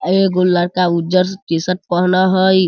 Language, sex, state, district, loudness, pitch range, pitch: Hindi, male, Bihar, Sitamarhi, -15 LUFS, 175-185 Hz, 185 Hz